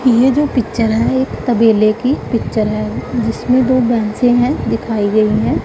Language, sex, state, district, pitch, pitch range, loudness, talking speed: Hindi, female, Punjab, Pathankot, 235 Hz, 215-250 Hz, -14 LUFS, 170 wpm